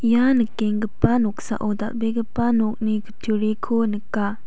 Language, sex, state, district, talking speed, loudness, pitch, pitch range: Garo, female, Meghalaya, South Garo Hills, 95 wpm, -22 LUFS, 220 Hz, 215-230 Hz